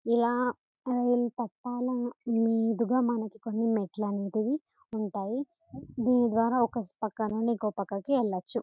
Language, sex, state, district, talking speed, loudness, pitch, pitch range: Telugu, male, Telangana, Karimnagar, 105 wpm, -30 LUFS, 230 Hz, 215-245 Hz